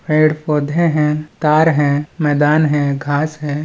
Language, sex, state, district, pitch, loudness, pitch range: Chhattisgarhi, male, Chhattisgarh, Balrampur, 150 Hz, -15 LUFS, 145-155 Hz